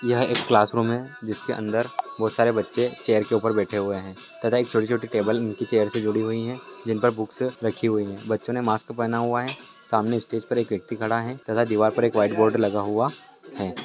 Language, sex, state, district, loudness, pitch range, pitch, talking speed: Hindi, male, Bihar, Lakhisarai, -24 LUFS, 110-120 Hz, 115 Hz, 235 wpm